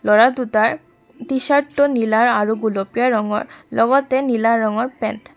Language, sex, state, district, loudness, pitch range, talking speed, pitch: Assamese, female, Assam, Kamrup Metropolitan, -18 LUFS, 220-260 Hz, 145 wpm, 230 Hz